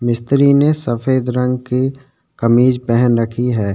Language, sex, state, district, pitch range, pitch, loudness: Hindi, male, Chhattisgarh, Sukma, 120-130 Hz, 125 Hz, -15 LUFS